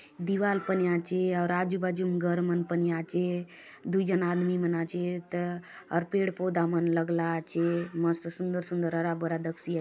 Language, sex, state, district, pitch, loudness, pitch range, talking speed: Halbi, female, Chhattisgarh, Bastar, 175 Hz, -29 LUFS, 170-180 Hz, 185 wpm